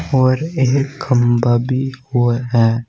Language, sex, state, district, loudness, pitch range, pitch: Hindi, male, Uttar Pradesh, Saharanpur, -16 LUFS, 120-130 Hz, 130 Hz